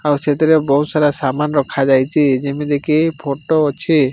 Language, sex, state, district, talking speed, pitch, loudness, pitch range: Odia, male, Odisha, Malkangiri, 160 wpm, 145 Hz, -16 LUFS, 140-155 Hz